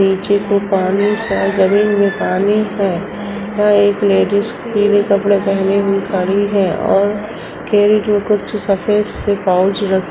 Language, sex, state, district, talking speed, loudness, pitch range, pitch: Hindi, female, Uttar Pradesh, Budaun, 135 wpm, -15 LUFS, 195-205 Hz, 200 Hz